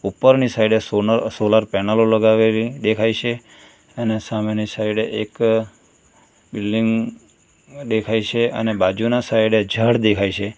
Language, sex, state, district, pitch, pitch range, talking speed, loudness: Gujarati, male, Gujarat, Valsad, 110 Hz, 105-115 Hz, 130 wpm, -18 LUFS